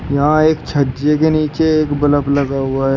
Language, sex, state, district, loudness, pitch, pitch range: Hindi, male, Uttar Pradesh, Shamli, -15 LUFS, 145 Hz, 140-155 Hz